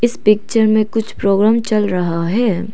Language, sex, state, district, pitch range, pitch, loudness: Hindi, female, Arunachal Pradesh, Lower Dibang Valley, 200-225 Hz, 215 Hz, -15 LUFS